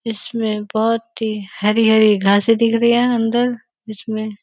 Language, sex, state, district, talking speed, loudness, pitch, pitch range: Hindi, female, Uttar Pradesh, Gorakhpur, 150 wpm, -17 LUFS, 220 Hz, 215-230 Hz